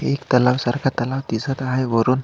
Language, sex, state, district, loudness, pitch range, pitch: Marathi, male, Maharashtra, Solapur, -20 LUFS, 120-135 Hz, 130 Hz